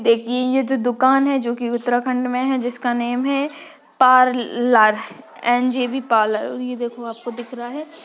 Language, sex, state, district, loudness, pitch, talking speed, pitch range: Hindi, female, Uttarakhand, Tehri Garhwal, -19 LUFS, 250 Hz, 170 wpm, 240-260 Hz